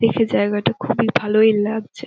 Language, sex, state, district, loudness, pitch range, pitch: Bengali, female, West Bengal, Dakshin Dinajpur, -18 LUFS, 210-225 Hz, 220 Hz